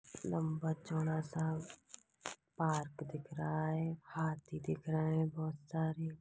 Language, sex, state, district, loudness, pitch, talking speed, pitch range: Hindi, male, Chhattisgarh, Raigarh, -39 LUFS, 160 Hz, 115 wpm, 155-160 Hz